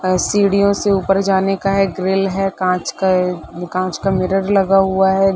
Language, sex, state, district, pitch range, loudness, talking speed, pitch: Hindi, female, Uttar Pradesh, Gorakhpur, 185-195 Hz, -16 LUFS, 190 wpm, 195 Hz